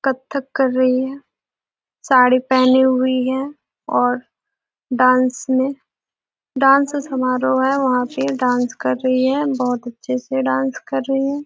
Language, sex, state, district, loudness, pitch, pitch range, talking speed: Hindi, female, Bihar, Gopalganj, -18 LUFS, 260 Hz, 250-270 Hz, 135 wpm